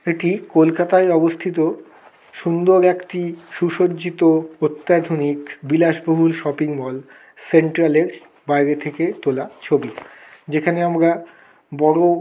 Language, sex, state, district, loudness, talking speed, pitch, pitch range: Bengali, male, West Bengal, Kolkata, -18 LUFS, 100 wpm, 165 Hz, 155-175 Hz